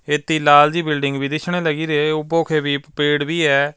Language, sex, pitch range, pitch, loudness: Punjabi, male, 145-160 Hz, 150 Hz, -17 LUFS